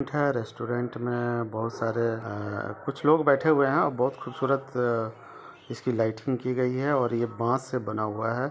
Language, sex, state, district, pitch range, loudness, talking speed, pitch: Hindi, male, Bihar, Begusarai, 115-135 Hz, -27 LUFS, 170 wpm, 120 Hz